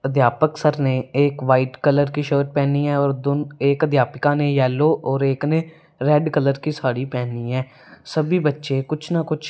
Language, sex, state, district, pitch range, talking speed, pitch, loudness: Hindi, female, Punjab, Fazilka, 135-150 Hz, 190 wpm, 140 Hz, -20 LUFS